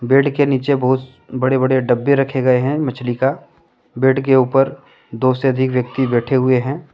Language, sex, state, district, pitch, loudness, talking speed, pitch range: Hindi, male, Jharkhand, Deoghar, 130 Hz, -16 LUFS, 190 wpm, 130-135 Hz